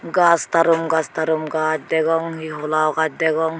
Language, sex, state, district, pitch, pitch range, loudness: Chakma, female, Tripura, Unakoti, 160 Hz, 155-165 Hz, -19 LUFS